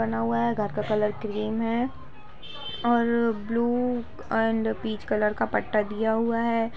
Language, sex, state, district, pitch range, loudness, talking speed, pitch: Hindi, female, Bihar, Gopalganj, 210-235 Hz, -26 LUFS, 170 wpm, 225 Hz